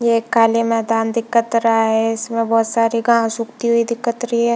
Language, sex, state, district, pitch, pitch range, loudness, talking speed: Hindi, female, Chhattisgarh, Bilaspur, 230 Hz, 225-235 Hz, -17 LUFS, 210 wpm